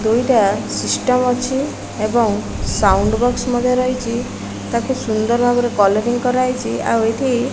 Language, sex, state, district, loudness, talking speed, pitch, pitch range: Odia, female, Odisha, Malkangiri, -17 LUFS, 135 wpm, 240 Hz, 225-250 Hz